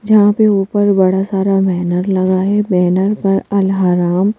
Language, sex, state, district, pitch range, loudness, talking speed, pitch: Hindi, female, Madhya Pradesh, Bhopal, 185-205 Hz, -13 LUFS, 150 wpm, 195 Hz